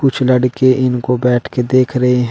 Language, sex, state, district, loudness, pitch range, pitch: Hindi, male, Uttar Pradesh, Shamli, -14 LUFS, 125-130 Hz, 125 Hz